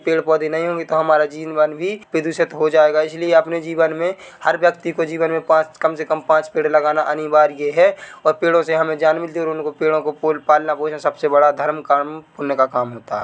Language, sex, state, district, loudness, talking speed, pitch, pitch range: Hindi, male, Chhattisgarh, Bilaspur, -18 LUFS, 225 wpm, 155 Hz, 150-165 Hz